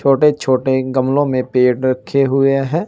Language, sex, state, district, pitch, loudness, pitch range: Hindi, male, Uttar Pradesh, Shamli, 135 Hz, -15 LUFS, 130-140 Hz